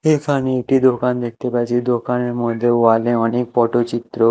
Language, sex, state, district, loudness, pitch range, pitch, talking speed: Bengali, male, Odisha, Malkangiri, -18 LUFS, 120-125 Hz, 120 Hz, 155 wpm